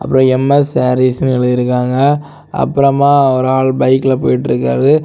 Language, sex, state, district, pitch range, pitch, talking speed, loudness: Tamil, male, Tamil Nadu, Kanyakumari, 125-140 Hz, 130 Hz, 105 wpm, -12 LUFS